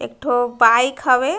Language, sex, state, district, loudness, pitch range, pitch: Chhattisgarhi, female, Chhattisgarh, Raigarh, -16 LUFS, 230-260 Hz, 245 Hz